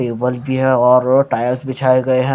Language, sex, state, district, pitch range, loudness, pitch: Hindi, male, Punjab, Kapurthala, 125-130 Hz, -15 LUFS, 130 Hz